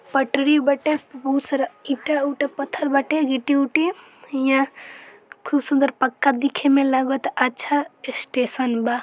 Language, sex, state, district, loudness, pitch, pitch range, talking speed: Bhojpuri, female, Bihar, Saran, -21 LUFS, 275 Hz, 265-290 Hz, 135 wpm